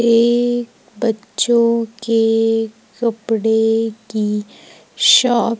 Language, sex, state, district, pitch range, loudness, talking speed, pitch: Hindi, female, Madhya Pradesh, Umaria, 220-235 Hz, -16 LUFS, 75 wpm, 225 Hz